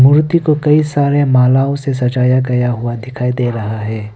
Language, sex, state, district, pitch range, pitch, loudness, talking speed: Hindi, male, Arunachal Pradesh, Papum Pare, 120-140 Hz, 125 Hz, -14 LUFS, 190 wpm